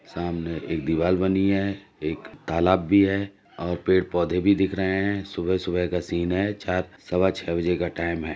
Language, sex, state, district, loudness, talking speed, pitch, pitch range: Hindi, male, Uttar Pradesh, Jalaun, -24 LUFS, 200 wpm, 90 Hz, 85-95 Hz